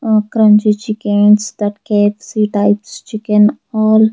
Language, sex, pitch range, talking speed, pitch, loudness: English, female, 210-220 Hz, 115 wpm, 210 Hz, -13 LUFS